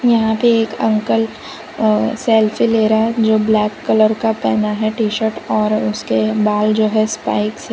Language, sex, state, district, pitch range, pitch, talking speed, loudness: Hindi, female, Gujarat, Valsad, 215-225 Hz, 220 Hz, 185 wpm, -16 LUFS